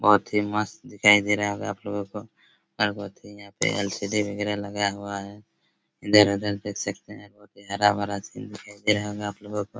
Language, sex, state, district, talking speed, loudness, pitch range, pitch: Hindi, male, Chhattisgarh, Raigarh, 230 wpm, -25 LUFS, 100-105 Hz, 105 Hz